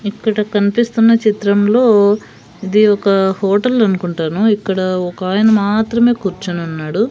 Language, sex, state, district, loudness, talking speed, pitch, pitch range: Telugu, female, Andhra Pradesh, Sri Satya Sai, -14 LUFS, 95 wpm, 205 Hz, 190-220 Hz